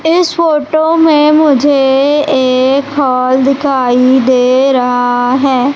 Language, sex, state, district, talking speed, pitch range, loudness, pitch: Hindi, female, Madhya Pradesh, Umaria, 105 wpm, 255-295 Hz, -10 LUFS, 270 Hz